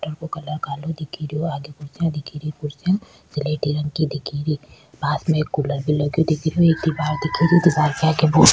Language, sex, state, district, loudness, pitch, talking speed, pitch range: Rajasthani, female, Rajasthan, Churu, -21 LUFS, 150 Hz, 220 wpm, 150-160 Hz